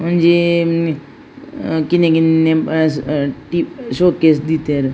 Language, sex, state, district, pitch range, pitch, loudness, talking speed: Tulu, female, Karnataka, Dakshina Kannada, 155-170 Hz, 160 Hz, -15 LUFS, 110 wpm